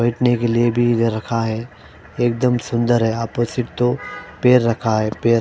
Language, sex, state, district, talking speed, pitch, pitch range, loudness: Hindi, male, Punjab, Fazilka, 190 wpm, 115 Hz, 110-120 Hz, -18 LUFS